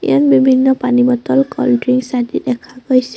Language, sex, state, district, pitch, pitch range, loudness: Assamese, female, Assam, Sonitpur, 250 Hz, 245-260 Hz, -14 LUFS